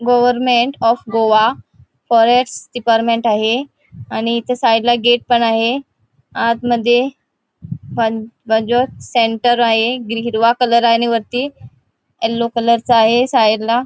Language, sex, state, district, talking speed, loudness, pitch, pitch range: Marathi, female, Goa, North and South Goa, 120 wpm, -15 LUFS, 235 Hz, 225-245 Hz